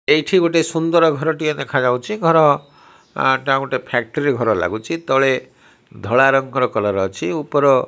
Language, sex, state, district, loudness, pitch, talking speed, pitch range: Odia, male, Odisha, Malkangiri, -17 LUFS, 135 Hz, 150 wpm, 125-160 Hz